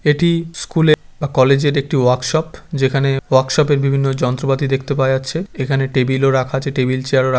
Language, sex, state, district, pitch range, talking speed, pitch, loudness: Bengali, male, West Bengal, Kolkata, 130-150 Hz, 210 wpm, 135 Hz, -16 LUFS